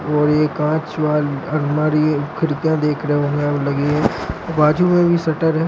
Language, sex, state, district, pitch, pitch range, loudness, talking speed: Hindi, male, Maharashtra, Solapur, 150 Hz, 150-160 Hz, -18 LUFS, 115 wpm